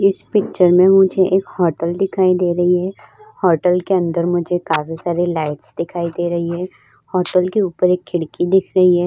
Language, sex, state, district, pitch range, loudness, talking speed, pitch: Hindi, female, Uttar Pradesh, Budaun, 170-185 Hz, -17 LUFS, 190 wpm, 180 Hz